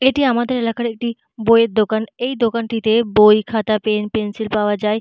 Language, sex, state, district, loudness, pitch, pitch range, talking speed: Bengali, female, West Bengal, North 24 Parganas, -17 LUFS, 225 Hz, 215-235 Hz, 180 wpm